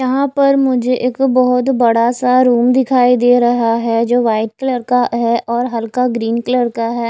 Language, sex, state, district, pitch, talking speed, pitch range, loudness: Hindi, female, Chhattisgarh, Raipur, 245 Hz, 195 wpm, 235-255 Hz, -14 LUFS